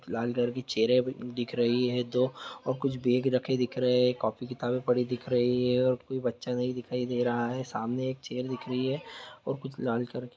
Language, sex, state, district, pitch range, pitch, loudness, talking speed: Hindi, male, Jharkhand, Sahebganj, 120-125 Hz, 125 Hz, -30 LUFS, 225 wpm